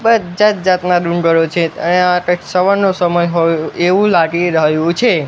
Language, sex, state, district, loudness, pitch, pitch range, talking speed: Gujarati, male, Gujarat, Gandhinagar, -13 LUFS, 175 Hz, 165-185 Hz, 135 wpm